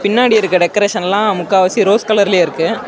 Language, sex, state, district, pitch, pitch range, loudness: Tamil, male, Tamil Nadu, Namakkal, 205 Hz, 185-215 Hz, -13 LUFS